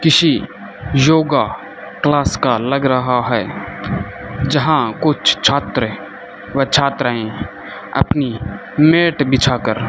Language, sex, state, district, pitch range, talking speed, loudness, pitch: Hindi, male, Rajasthan, Bikaner, 120-145 Hz, 105 wpm, -16 LUFS, 135 Hz